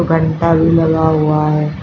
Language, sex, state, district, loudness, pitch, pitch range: Hindi, female, Uttar Pradesh, Shamli, -13 LUFS, 160 Hz, 155-165 Hz